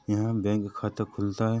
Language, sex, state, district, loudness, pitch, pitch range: Hindi, male, Chhattisgarh, Rajnandgaon, -29 LUFS, 105 Hz, 105-110 Hz